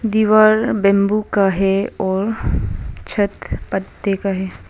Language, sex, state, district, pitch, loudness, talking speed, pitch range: Hindi, female, Arunachal Pradesh, Papum Pare, 200 Hz, -17 LUFS, 115 wpm, 195-215 Hz